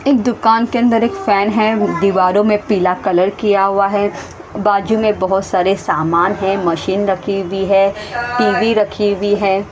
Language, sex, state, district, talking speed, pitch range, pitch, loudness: Hindi, female, Haryana, Rohtak, 175 wpm, 195-215 Hz, 200 Hz, -15 LUFS